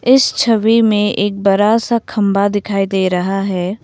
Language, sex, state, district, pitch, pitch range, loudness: Hindi, female, Assam, Kamrup Metropolitan, 205 Hz, 195-225 Hz, -14 LUFS